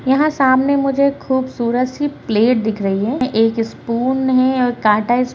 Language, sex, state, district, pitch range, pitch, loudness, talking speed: Hindi, female, Bihar, Kishanganj, 225-265 Hz, 255 Hz, -16 LUFS, 170 wpm